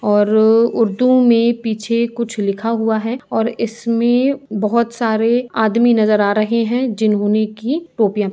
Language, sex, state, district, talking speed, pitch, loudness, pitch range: Hindi, female, Uttar Pradesh, Jyotiba Phule Nagar, 165 wpm, 230 Hz, -16 LUFS, 215-235 Hz